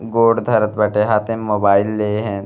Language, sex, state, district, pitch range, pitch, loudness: Bhojpuri, male, Uttar Pradesh, Gorakhpur, 105-110 Hz, 105 Hz, -16 LUFS